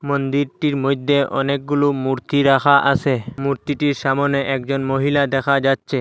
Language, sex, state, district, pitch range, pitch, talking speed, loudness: Bengali, male, Assam, Hailakandi, 135-140 Hz, 140 Hz, 120 wpm, -18 LUFS